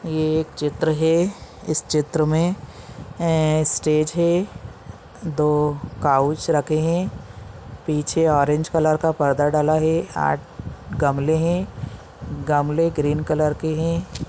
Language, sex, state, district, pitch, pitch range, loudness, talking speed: Hindi, male, Chhattisgarh, Balrampur, 155 Hz, 145-160 Hz, -21 LUFS, 120 wpm